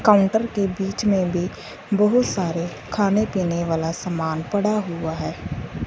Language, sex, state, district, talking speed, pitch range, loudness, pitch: Hindi, female, Punjab, Fazilka, 145 wpm, 170-210 Hz, -22 LUFS, 195 Hz